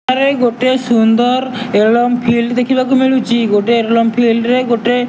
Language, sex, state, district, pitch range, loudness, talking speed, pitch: Odia, male, Odisha, Nuapada, 230-255 Hz, -13 LUFS, 155 wpm, 245 Hz